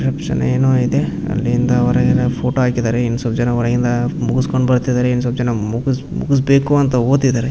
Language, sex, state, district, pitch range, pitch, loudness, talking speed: Kannada, male, Karnataka, Raichur, 120-130 Hz, 125 Hz, -16 LUFS, 175 wpm